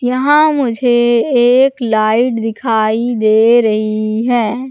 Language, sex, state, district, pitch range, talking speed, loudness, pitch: Hindi, female, Madhya Pradesh, Katni, 220-250 Hz, 100 wpm, -12 LUFS, 235 Hz